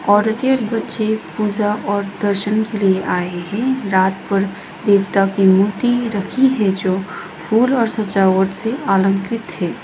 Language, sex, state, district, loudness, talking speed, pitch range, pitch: Hindi, female, Sikkim, Gangtok, -17 LUFS, 145 wpm, 190-220 Hz, 205 Hz